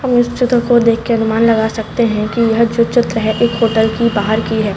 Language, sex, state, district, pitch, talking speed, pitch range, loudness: Hindi, female, Chhattisgarh, Raipur, 230 Hz, 265 wpm, 220-235 Hz, -14 LUFS